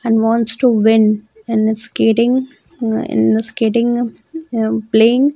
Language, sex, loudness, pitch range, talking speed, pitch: English, female, -15 LUFS, 220-240 Hz, 145 wpm, 225 Hz